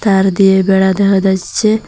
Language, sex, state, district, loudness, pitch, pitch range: Bengali, female, Assam, Hailakandi, -11 LUFS, 195 Hz, 190-200 Hz